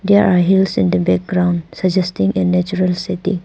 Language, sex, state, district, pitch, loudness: English, female, Arunachal Pradesh, Papum Pare, 180 Hz, -16 LUFS